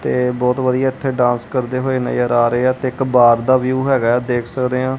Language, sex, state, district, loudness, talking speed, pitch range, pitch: Punjabi, male, Punjab, Kapurthala, -16 LUFS, 250 wpm, 120-130 Hz, 125 Hz